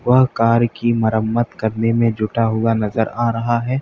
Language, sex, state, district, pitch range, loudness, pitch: Hindi, male, Uttar Pradesh, Lalitpur, 110-120 Hz, -18 LUFS, 115 Hz